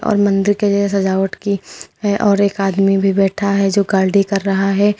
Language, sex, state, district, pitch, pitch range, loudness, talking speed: Hindi, female, Uttar Pradesh, Lalitpur, 200 Hz, 195-200 Hz, -15 LUFS, 215 wpm